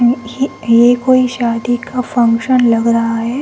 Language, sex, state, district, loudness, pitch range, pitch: Hindi, female, Bihar, Kaimur, -13 LUFS, 230-250 Hz, 240 Hz